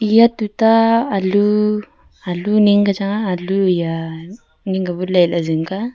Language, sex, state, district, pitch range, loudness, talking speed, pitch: Wancho, female, Arunachal Pradesh, Longding, 180-215 Hz, -16 LUFS, 190 wpm, 200 Hz